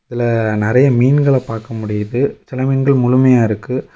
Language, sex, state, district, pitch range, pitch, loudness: Tamil, male, Tamil Nadu, Kanyakumari, 115-130 Hz, 125 Hz, -15 LUFS